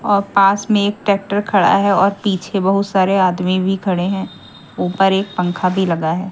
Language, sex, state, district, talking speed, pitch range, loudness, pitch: Hindi, female, Haryana, Jhajjar, 200 wpm, 185-200 Hz, -16 LUFS, 195 Hz